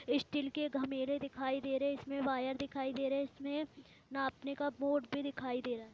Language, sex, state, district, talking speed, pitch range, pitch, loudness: Hindi, female, Uttar Pradesh, Varanasi, 190 wpm, 265-280 Hz, 275 Hz, -38 LUFS